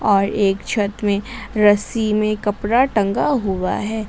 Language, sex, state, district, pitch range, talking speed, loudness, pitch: Hindi, female, Jharkhand, Garhwa, 200-215 Hz, 145 wpm, -19 LUFS, 210 Hz